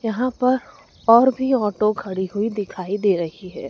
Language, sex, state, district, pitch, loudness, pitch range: Hindi, female, Madhya Pradesh, Dhar, 215 Hz, -20 LUFS, 190-250 Hz